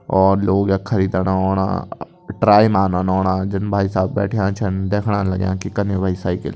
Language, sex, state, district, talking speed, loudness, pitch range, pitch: Kumaoni, male, Uttarakhand, Tehri Garhwal, 185 wpm, -18 LUFS, 95-100 Hz, 95 Hz